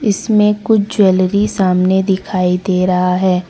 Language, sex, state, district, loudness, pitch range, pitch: Hindi, female, Jharkhand, Deoghar, -14 LUFS, 185-210 Hz, 190 Hz